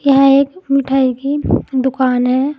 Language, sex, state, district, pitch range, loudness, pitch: Hindi, female, Uttar Pradesh, Saharanpur, 260-275 Hz, -14 LUFS, 275 Hz